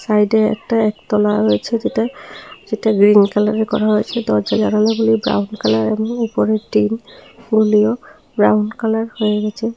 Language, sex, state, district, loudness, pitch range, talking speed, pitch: Bengali, female, Tripura, South Tripura, -16 LUFS, 210-225 Hz, 140 wpm, 215 Hz